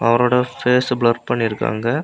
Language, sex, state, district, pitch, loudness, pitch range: Tamil, male, Tamil Nadu, Kanyakumari, 120 Hz, -18 LUFS, 115-125 Hz